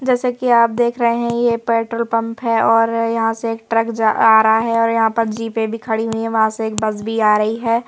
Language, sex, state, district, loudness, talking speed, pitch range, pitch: Hindi, female, Madhya Pradesh, Bhopal, -17 LUFS, 265 wpm, 225-230 Hz, 230 Hz